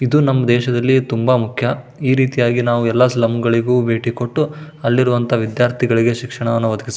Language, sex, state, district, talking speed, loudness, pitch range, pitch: Kannada, male, Karnataka, Shimoga, 145 wpm, -16 LUFS, 115-130 Hz, 120 Hz